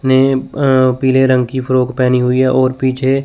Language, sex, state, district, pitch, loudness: Hindi, male, Chandigarh, Chandigarh, 130 Hz, -13 LUFS